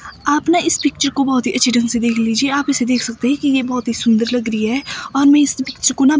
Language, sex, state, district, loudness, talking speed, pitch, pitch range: Hindi, female, Himachal Pradesh, Shimla, -16 LUFS, 290 wpm, 265 Hz, 240-285 Hz